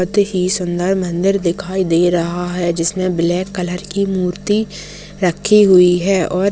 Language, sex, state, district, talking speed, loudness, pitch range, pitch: Hindi, male, Chhattisgarh, Rajnandgaon, 155 wpm, -16 LUFS, 175-195 Hz, 180 Hz